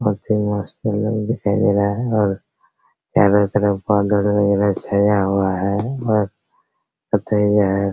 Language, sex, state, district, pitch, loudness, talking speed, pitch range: Hindi, male, Bihar, Araria, 105 Hz, -18 LUFS, 135 wpm, 100-105 Hz